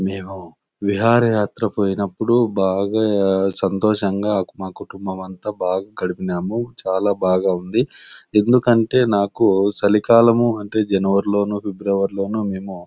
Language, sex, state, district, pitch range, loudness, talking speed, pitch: Telugu, male, Andhra Pradesh, Anantapur, 95-105 Hz, -19 LUFS, 110 wpm, 100 Hz